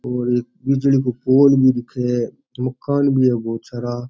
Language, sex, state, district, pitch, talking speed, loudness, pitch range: Rajasthani, male, Rajasthan, Churu, 125 Hz, 190 wpm, -18 LUFS, 120-135 Hz